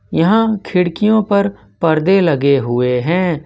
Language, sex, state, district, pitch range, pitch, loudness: Hindi, male, Jharkhand, Ranchi, 155-200 Hz, 175 Hz, -15 LUFS